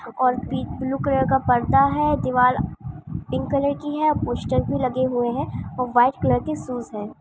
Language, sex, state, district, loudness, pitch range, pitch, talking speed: Hindi, female, Andhra Pradesh, Anantapur, -22 LUFS, 180-275 Hz, 250 Hz, 185 wpm